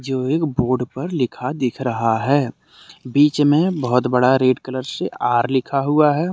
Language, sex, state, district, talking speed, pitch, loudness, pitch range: Hindi, male, Jharkhand, Deoghar, 180 wpm, 130 Hz, -19 LUFS, 125-145 Hz